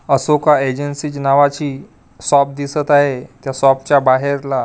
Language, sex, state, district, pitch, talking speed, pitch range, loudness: Marathi, male, Maharashtra, Gondia, 140 Hz, 140 wpm, 135-145 Hz, -15 LUFS